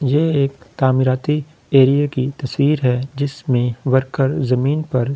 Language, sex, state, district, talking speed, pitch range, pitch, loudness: Hindi, male, Delhi, New Delhi, 115 wpm, 130-145 Hz, 135 Hz, -18 LUFS